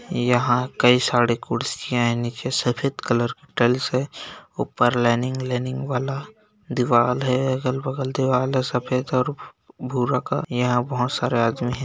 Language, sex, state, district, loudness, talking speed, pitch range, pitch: Hindi, male, Bihar, Bhagalpur, -22 LUFS, 155 wpm, 120-130 Hz, 125 Hz